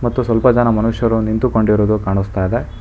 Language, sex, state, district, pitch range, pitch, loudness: Kannada, male, Karnataka, Bangalore, 105-120 Hz, 110 Hz, -15 LUFS